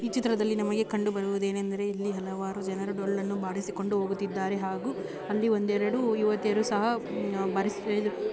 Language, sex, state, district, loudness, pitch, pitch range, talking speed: Kannada, female, Karnataka, Bijapur, -29 LUFS, 205 Hz, 195-215 Hz, 135 wpm